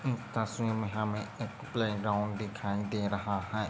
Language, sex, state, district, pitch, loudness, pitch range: Hindi, male, Maharashtra, Dhule, 105 Hz, -34 LUFS, 105-115 Hz